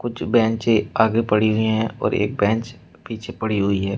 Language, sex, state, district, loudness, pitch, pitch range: Hindi, male, Uttar Pradesh, Shamli, -20 LUFS, 110 Hz, 105-115 Hz